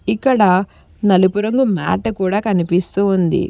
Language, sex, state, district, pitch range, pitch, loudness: Telugu, female, Telangana, Hyderabad, 185-215 Hz, 200 Hz, -16 LUFS